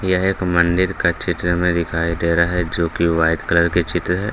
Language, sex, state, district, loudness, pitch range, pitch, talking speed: Hindi, male, Bihar, Gaya, -18 LUFS, 85-90 Hz, 85 Hz, 235 wpm